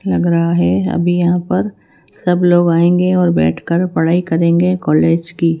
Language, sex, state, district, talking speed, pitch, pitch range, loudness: Hindi, female, Bihar, Katihar, 170 wpm, 170 Hz, 155-180 Hz, -14 LUFS